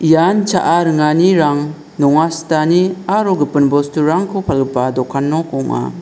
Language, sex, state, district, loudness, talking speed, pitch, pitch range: Garo, male, Meghalaya, South Garo Hills, -14 LUFS, 120 wpm, 155 Hz, 140-175 Hz